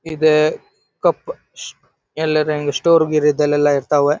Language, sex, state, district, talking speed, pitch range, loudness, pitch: Kannada, male, Karnataka, Dharwad, 100 wpm, 145-155 Hz, -16 LUFS, 150 Hz